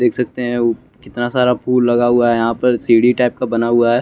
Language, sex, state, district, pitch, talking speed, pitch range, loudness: Hindi, male, Chandigarh, Chandigarh, 120 Hz, 270 wpm, 120-125 Hz, -15 LUFS